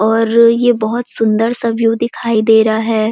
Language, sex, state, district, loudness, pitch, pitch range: Hindi, female, Chhattisgarh, Korba, -13 LUFS, 225 Hz, 220-235 Hz